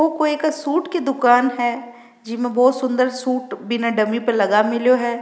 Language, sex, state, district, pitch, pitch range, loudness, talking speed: Rajasthani, female, Rajasthan, Nagaur, 245 Hz, 235-260 Hz, -19 LUFS, 195 wpm